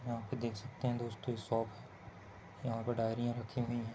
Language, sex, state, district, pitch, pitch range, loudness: Hindi, male, Rajasthan, Churu, 120 Hz, 110-120 Hz, -39 LUFS